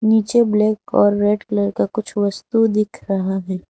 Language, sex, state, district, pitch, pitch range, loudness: Hindi, female, Jharkhand, Garhwa, 210 Hz, 200-220 Hz, -18 LUFS